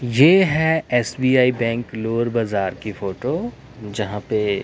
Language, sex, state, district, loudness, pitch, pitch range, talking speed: Hindi, male, Himachal Pradesh, Shimla, -20 LUFS, 120 Hz, 110-130 Hz, 130 wpm